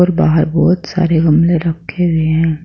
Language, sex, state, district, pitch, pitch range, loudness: Hindi, female, Uttar Pradesh, Saharanpur, 165 Hz, 160-175 Hz, -13 LUFS